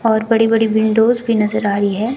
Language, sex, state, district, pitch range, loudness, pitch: Hindi, female, Himachal Pradesh, Shimla, 215-225 Hz, -15 LUFS, 220 Hz